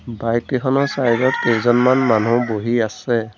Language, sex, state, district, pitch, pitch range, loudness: Assamese, male, Assam, Sonitpur, 120 Hz, 115-130 Hz, -17 LUFS